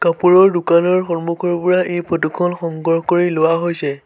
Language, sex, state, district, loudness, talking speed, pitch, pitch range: Assamese, male, Assam, Sonitpur, -16 LUFS, 165 wpm, 170 Hz, 165-180 Hz